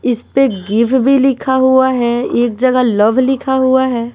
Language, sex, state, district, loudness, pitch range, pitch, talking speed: Hindi, female, Bihar, Patna, -13 LUFS, 240-260 Hz, 255 Hz, 190 wpm